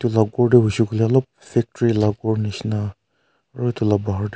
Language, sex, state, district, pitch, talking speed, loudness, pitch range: Nagamese, male, Nagaland, Kohima, 110 Hz, 235 wpm, -20 LUFS, 105-120 Hz